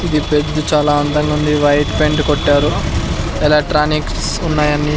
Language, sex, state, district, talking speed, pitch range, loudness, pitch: Telugu, male, Andhra Pradesh, Sri Satya Sai, 135 wpm, 145-150 Hz, -15 LUFS, 150 Hz